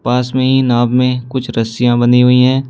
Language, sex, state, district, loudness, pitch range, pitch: Hindi, male, Uttar Pradesh, Shamli, -12 LUFS, 120-130 Hz, 125 Hz